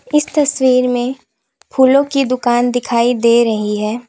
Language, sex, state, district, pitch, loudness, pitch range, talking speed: Hindi, female, Uttar Pradesh, Lalitpur, 250 Hz, -14 LUFS, 235-270 Hz, 145 wpm